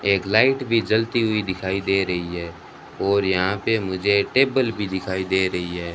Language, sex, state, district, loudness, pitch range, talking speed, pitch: Hindi, male, Rajasthan, Bikaner, -21 LUFS, 95-110 Hz, 190 wpm, 100 Hz